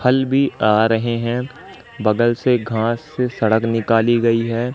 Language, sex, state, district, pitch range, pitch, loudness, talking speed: Hindi, male, Madhya Pradesh, Katni, 115-125 Hz, 115 Hz, -18 LUFS, 165 wpm